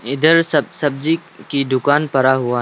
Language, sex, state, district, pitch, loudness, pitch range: Hindi, male, Arunachal Pradesh, Lower Dibang Valley, 145 Hz, -16 LUFS, 130-160 Hz